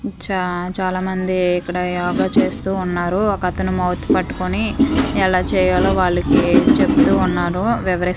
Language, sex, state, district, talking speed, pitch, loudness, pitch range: Telugu, female, Andhra Pradesh, Manyam, 110 wpm, 180 Hz, -18 LUFS, 175-185 Hz